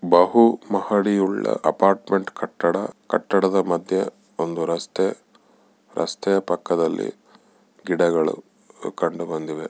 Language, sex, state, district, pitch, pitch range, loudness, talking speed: Kannada, male, Karnataka, Bellary, 95 Hz, 85-100 Hz, -22 LUFS, 75 wpm